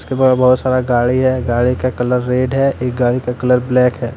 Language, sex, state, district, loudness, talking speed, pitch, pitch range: Hindi, male, Jharkhand, Deoghar, -15 LUFS, 215 wpm, 125 Hz, 125-130 Hz